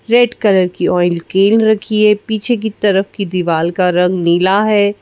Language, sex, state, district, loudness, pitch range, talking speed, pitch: Hindi, female, Madhya Pradesh, Bhopal, -13 LUFS, 180-215 Hz, 180 wpm, 200 Hz